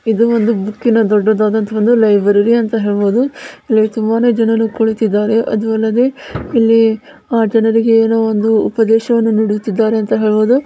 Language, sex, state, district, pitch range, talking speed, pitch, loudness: Kannada, female, Karnataka, Bellary, 215-230 Hz, 120 wpm, 225 Hz, -13 LUFS